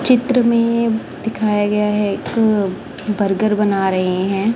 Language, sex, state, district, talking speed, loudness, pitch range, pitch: Hindi, female, Punjab, Kapurthala, 130 wpm, -17 LUFS, 200-225 Hz, 210 Hz